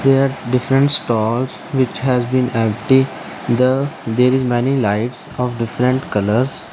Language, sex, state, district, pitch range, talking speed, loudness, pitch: English, male, Punjab, Fazilka, 120-130 Hz, 135 wpm, -17 LUFS, 125 Hz